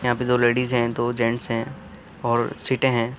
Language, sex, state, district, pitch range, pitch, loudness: Hindi, male, Uttar Pradesh, Muzaffarnagar, 120-125 Hz, 120 Hz, -22 LUFS